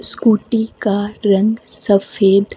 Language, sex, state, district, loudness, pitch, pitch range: Hindi, female, Himachal Pradesh, Shimla, -16 LUFS, 205 Hz, 200-220 Hz